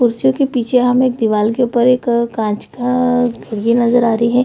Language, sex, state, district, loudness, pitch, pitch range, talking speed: Hindi, female, Bihar, Purnia, -15 LUFS, 240 Hz, 230-250 Hz, 215 wpm